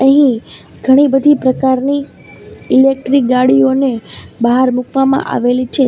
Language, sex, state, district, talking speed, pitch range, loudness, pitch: Gujarati, female, Gujarat, Valsad, 100 wpm, 250-270 Hz, -12 LUFS, 265 Hz